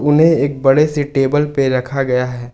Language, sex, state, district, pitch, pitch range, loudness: Hindi, male, Jharkhand, Ranchi, 135 Hz, 130-145 Hz, -15 LUFS